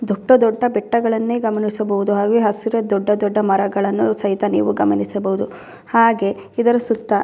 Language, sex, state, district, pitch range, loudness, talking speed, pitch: Kannada, female, Karnataka, Bellary, 200-230 Hz, -18 LUFS, 85 wpm, 210 Hz